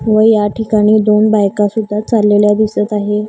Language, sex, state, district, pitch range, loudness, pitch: Marathi, female, Maharashtra, Gondia, 210-215 Hz, -12 LUFS, 210 Hz